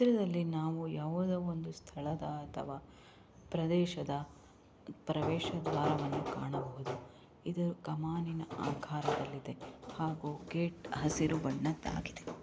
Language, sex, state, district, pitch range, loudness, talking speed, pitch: Kannada, female, Karnataka, Belgaum, 145-170 Hz, -37 LUFS, 90 wpm, 155 Hz